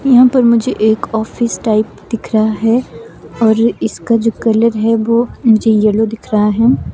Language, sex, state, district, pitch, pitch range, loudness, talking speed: Hindi, female, Himachal Pradesh, Shimla, 225 Hz, 220-235 Hz, -13 LUFS, 175 wpm